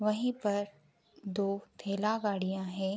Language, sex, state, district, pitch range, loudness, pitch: Hindi, female, Bihar, Begusarai, 190-210 Hz, -34 LUFS, 200 Hz